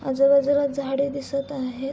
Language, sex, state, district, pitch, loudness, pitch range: Marathi, female, Maharashtra, Pune, 275 Hz, -23 LUFS, 270-280 Hz